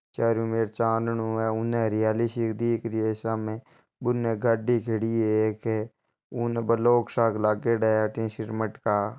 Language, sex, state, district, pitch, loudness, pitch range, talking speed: Marwari, male, Rajasthan, Churu, 115 Hz, -26 LUFS, 110-115 Hz, 145 wpm